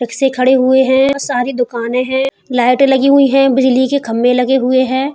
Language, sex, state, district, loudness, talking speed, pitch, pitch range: Hindi, female, Uttar Pradesh, Hamirpur, -12 LUFS, 210 wpm, 260 Hz, 250-270 Hz